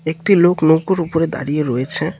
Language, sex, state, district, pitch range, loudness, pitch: Bengali, male, West Bengal, Cooch Behar, 150-175 Hz, -16 LUFS, 160 Hz